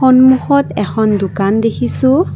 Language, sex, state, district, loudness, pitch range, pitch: Assamese, female, Assam, Kamrup Metropolitan, -13 LUFS, 205-260 Hz, 225 Hz